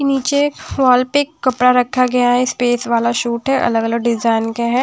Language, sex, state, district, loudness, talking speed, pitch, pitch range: Hindi, female, Odisha, Sambalpur, -16 LUFS, 210 wpm, 250 Hz, 235-265 Hz